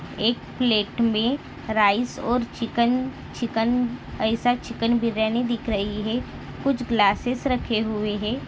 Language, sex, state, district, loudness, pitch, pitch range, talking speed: Hindi, female, Maharashtra, Nagpur, -24 LUFS, 230 Hz, 220-245 Hz, 125 wpm